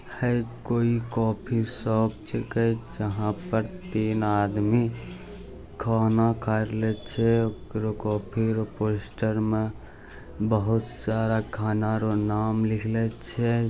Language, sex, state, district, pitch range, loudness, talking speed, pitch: Angika, male, Bihar, Bhagalpur, 105-115 Hz, -26 LUFS, 110 wpm, 110 Hz